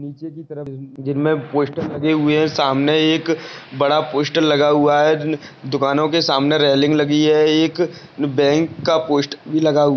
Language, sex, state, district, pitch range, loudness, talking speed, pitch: Hindi, male, Chhattisgarh, Sarguja, 145-155 Hz, -17 LUFS, 170 wpm, 150 Hz